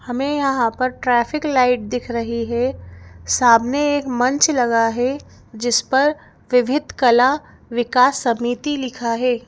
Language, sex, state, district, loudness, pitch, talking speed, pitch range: Hindi, female, Madhya Pradesh, Bhopal, -18 LUFS, 245 Hz, 135 wpm, 235-265 Hz